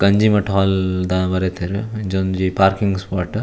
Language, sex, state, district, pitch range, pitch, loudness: Tulu, male, Karnataka, Dakshina Kannada, 95-100 Hz, 95 Hz, -18 LUFS